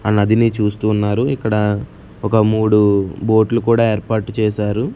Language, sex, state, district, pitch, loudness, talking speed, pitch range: Telugu, male, Andhra Pradesh, Sri Satya Sai, 110 Hz, -16 LUFS, 145 wpm, 105-115 Hz